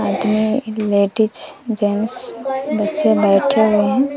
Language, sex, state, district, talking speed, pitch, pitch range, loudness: Hindi, female, Bihar, West Champaran, 100 wpm, 215 Hz, 210-255 Hz, -17 LUFS